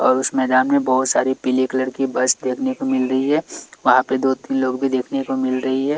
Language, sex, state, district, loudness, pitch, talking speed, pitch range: Hindi, male, Chhattisgarh, Raipur, -19 LUFS, 130 Hz, 260 wpm, 130-135 Hz